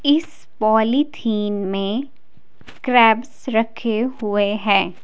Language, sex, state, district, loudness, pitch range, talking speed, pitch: Hindi, female, Delhi, New Delhi, -19 LUFS, 210-260 Hz, 85 wpm, 225 Hz